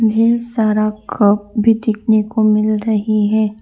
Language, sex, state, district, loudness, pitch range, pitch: Hindi, female, Arunachal Pradesh, Papum Pare, -15 LUFS, 215-220 Hz, 215 Hz